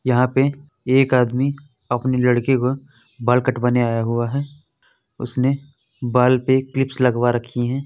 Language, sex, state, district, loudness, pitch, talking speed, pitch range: Hindi, male, Uttar Pradesh, Muzaffarnagar, -19 LUFS, 125 Hz, 145 wpm, 120-135 Hz